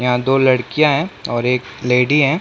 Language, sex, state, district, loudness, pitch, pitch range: Hindi, male, Chhattisgarh, Bilaspur, -16 LUFS, 130 Hz, 125-145 Hz